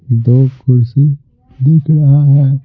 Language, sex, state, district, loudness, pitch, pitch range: Hindi, male, Bihar, Patna, -10 LUFS, 135 Hz, 125-140 Hz